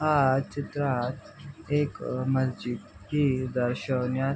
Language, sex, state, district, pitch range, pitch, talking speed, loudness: Marathi, male, Maharashtra, Aurangabad, 130-145 Hz, 135 Hz, 95 wpm, -28 LUFS